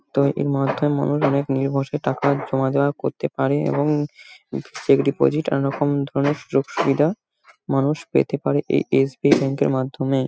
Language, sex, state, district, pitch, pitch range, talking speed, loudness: Bengali, male, West Bengal, Paschim Medinipur, 140 Hz, 135-145 Hz, 150 wpm, -21 LUFS